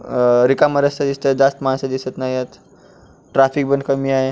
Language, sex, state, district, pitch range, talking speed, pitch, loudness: Marathi, male, Maharashtra, Pune, 130-140 Hz, 150 wpm, 135 Hz, -17 LUFS